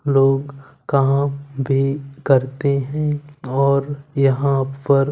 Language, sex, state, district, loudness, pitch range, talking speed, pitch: Hindi, male, Punjab, Kapurthala, -19 LUFS, 135-140 Hz, 95 wpm, 140 Hz